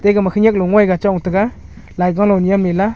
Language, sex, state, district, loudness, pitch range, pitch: Wancho, male, Arunachal Pradesh, Longding, -14 LUFS, 185-205 Hz, 200 Hz